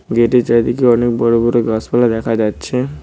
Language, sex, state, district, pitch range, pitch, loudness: Bengali, male, West Bengal, Cooch Behar, 115-120 Hz, 115 Hz, -14 LUFS